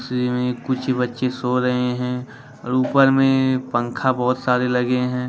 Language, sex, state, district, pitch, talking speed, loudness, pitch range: Hindi, male, Jharkhand, Ranchi, 125 Hz, 145 wpm, -20 LUFS, 125-130 Hz